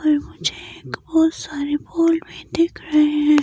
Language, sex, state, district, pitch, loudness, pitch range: Hindi, female, Himachal Pradesh, Shimla, 305 Hz, -20 LUFS, 295-325 Hz